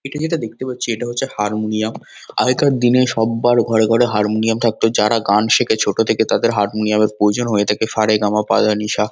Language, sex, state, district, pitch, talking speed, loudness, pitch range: Bengali, male, West Bengal, Kolkata, 110 Hz, 230 wpm, -17 LUFS, 105-120 Hz